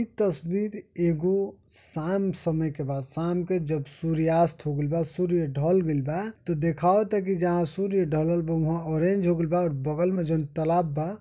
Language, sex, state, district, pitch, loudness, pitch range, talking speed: Bhojpuri, male, Uttar Pradesh, Deoria, 170 Hz, -26 LUFS, 160-185 Hz, 195 wpm